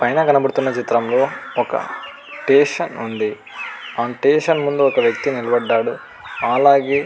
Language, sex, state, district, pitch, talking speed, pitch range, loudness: Telugu, male, Andhra Pradesh, Anantapur, 135 Hz, 120 wpm, 115-140 Hz, -18 LUFS